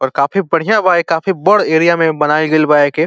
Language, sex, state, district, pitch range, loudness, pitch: Bhojpuri, male, Uttar Pradesh, Deoria, 150-180 Hz, -12 LUFS, 165 Hz